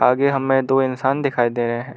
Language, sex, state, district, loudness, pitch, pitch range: Hindi, male, Arunachal Pradesh, Lower Dibang Valley, -19 LUFS, 135 Hz, 120-135 Hz